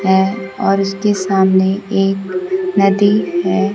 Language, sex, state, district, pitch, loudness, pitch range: Hindi, female, Bihar, Kaimur, 195 Hz, -15 LUFS, 190-195 Hz